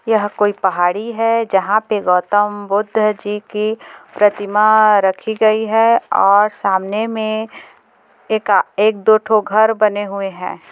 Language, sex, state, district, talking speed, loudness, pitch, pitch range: Hindi, female, Chhattisgarh, Korba, 135 wpm, -15 LUFS, 210 Hz, 205-220 Hz